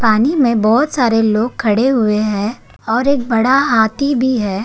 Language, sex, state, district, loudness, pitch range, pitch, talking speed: Hindi, male, Uttarakhand, Tehri Garhwal, -14 LUFS, 220-260 Hz, 230 Hz, 180 wpm